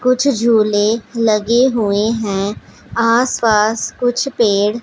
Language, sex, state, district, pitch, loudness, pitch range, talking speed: Hindi, female, Punjab, Pathankot, 225 Hz, -15 LUFS, 210-240 Hz, 100 wpm